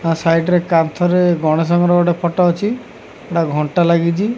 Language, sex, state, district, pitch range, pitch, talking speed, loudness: Odia, male, Odisha, Khordha, 165-180 Hz, 175 Hz, 135 wpm, -15 LUFS